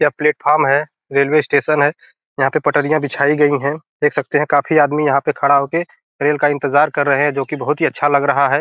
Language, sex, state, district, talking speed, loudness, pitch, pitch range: Hindi, male, Bihar, Gopalganj, 235 wpm, -16 LUFS, 145 Hz, 140-150 Hz